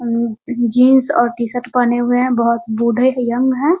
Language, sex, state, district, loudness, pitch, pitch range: Hindi, female, Bihar, Muzaffarpur, -15 LUFS, 245 Hz, 235-255 Hz